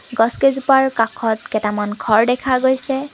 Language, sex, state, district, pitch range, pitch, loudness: Assamese, female, Assam, Kamrup Metropolitan, 220-265 Hz, 250 Hz, -17 LUFS